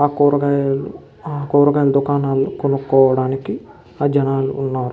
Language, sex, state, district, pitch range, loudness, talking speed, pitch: Telugu, male, Andhra Pradesh, Krishna, 135-145 Hz, -17 LUFS, 85 wpm, 140 Hz